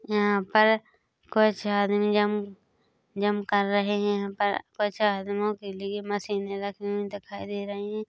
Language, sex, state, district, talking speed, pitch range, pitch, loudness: Hindi, female, Chhattisgarh, Korba, 165 wpm, 200-210 Hz, 205 Hz, -27 LUFS